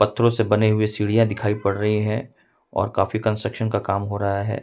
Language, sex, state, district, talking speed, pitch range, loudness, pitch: Hindi, male, Jharkhand, Ranchi, 220 wpm, 100-110 Hz, -22 LUFS, 105 Hz